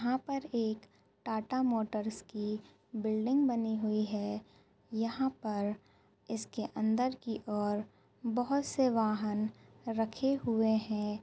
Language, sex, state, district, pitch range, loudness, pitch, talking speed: Hindi, female, Uttar Pradesh, Budaun, 215-245 Hz, -34 LUFS, 220 Hz, 120 wpm